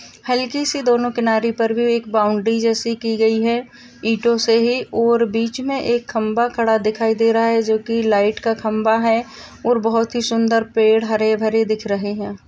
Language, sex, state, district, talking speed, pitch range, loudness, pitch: Hindi, female, Maharashtra, Solapur, 190 wpm, 220-235 Hz, -18 LUFS, 225 Hz